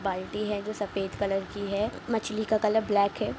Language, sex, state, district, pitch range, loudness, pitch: Hindi, female, Jharkhand, Sahebganj, 200-215 Hz, -29 LUFS, 205 Hz